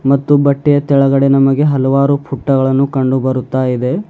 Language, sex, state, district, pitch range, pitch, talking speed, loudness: Kannada, male, Karnataka, Bidar, 130-140 Hz, 135 Hz, 130 wpm, -13 LUFS